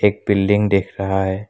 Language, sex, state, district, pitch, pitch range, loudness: Hindi, male, Assam, Kamrup Metropolitan, 100 Hz, 95-105 Hz, -18 LUFS